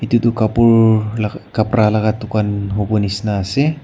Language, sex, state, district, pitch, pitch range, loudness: Nagamese, male, Nagaland, Kohima, 110 Hz, 105-115 Hz, -16 LUFS